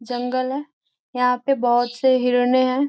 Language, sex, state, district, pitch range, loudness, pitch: Hindi, female, Bihar, Gopalganj, 245-265 Hz, -20 LUFS, 255 Hz